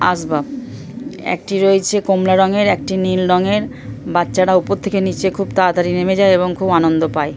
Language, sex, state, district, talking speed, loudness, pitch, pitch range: Bengali, female, West Bengal, Purulia, 170 wpm, -15 LUFS, 185 Hz, 175-195 Hz